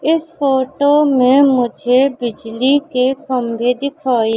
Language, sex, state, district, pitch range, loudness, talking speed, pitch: Hindi, female, Madhya Pradesh, Katni, 245-280 Hz, -15 LUFS, 110 wpm, 260 Hz